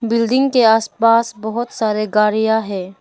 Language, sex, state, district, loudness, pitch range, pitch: Hindi, female, Arunachal Pradesh, Lower Dibang Valley, -16 LUFS, 215-230 Hz, 225 Hz